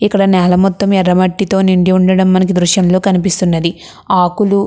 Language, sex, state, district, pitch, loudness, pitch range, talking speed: Telugu, female, Andhra Pradesh, Krishna, 185 Hz, -12 LUFS, 180-195 Hz, 180 wpm